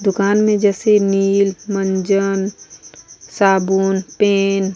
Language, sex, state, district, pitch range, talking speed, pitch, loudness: Hindi, female, Uttar Pradesh, Muzaffarnagar, 195-200 Hz, 100 wpm, 195 Hz, -16 LUFS